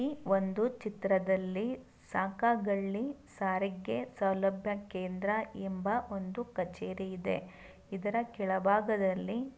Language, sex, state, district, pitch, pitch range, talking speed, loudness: Kannada, female, Karnataka, Mysore, 195 Hz, 190-225 Hz, 80 wpm, -34 LUFS